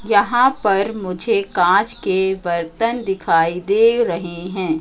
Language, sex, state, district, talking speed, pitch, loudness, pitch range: Hindi, female, Madhya Pradesh, Katni, 125 wpm, 195 Hz, -18 LUFS, 175-230 Hz